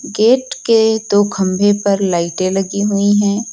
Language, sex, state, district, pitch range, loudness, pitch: Hindi, female, Uttar Pradesh, Lucknow, 195-215 Hz, -14 LUFS, 205 Hz